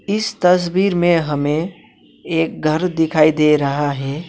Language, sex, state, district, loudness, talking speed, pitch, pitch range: Hindi, male, West Bengal, Alipurduar, -17 LUFS, 140 wpm, 160 Hz, 150-180 Hz